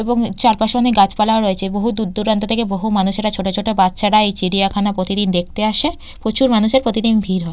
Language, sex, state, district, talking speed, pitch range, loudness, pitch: Bengali, female, West Bengal, Purulia, 190 wpm, 195-225 Hz, -16 LUFS, 215 Hz